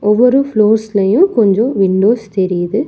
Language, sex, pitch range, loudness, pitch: Tamil, female, 195-230 Hz, -12 LUFS, 215 Hz